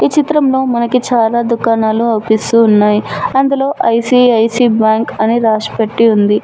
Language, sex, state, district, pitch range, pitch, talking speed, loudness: Telugu, female, Telangana, Mahabubabad, 220-250 Hz, 230 Hz, 120 wpm, -12 LUFS